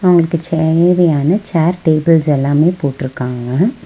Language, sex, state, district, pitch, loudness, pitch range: Tamil, female, Tamil Nadu, Nilgiris, 160 Hz, -14 LUFS, 145-175 Hz